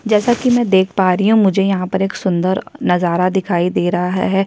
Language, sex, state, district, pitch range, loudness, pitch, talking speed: Hindi, female, Chhattisgarh, Kabirdham, 180-200 Hz, -15 LUFS, 190 Hz, 215 wpm